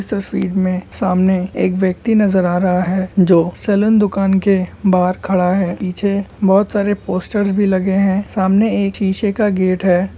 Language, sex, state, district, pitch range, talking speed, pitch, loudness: Hindi, male, West Bengal, Kolkata, 185-200 Hz, 175 wpm, 190 Hz, -16 LUFS